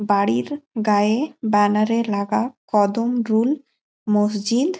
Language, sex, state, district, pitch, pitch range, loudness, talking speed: Bengali, female, West Bengal, Malda, 220 Hz, 205-245 Hz, -20 LUFS, 85 wpm